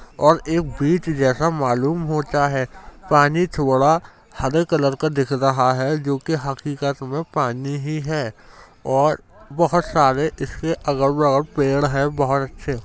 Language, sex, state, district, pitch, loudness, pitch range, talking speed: Hindi, male, Uttar Pradesh, Jyotiba Phule Nagar, 145 Hz, -20 LUFS, 135-155 Hz, 150 wpm